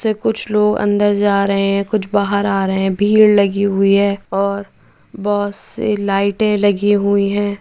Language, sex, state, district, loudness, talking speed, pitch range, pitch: Hindi, female, Bihar, Madhepura, -15 LUFS, 180 wpm, 200-205 Hz, 200 Hz